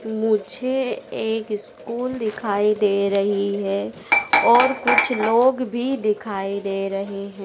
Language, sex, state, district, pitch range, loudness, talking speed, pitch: Hindi, female, Madhya Pradesh, Dhar, 200-250 Hz, -20 LUFS, 120 wpm, 215 Hz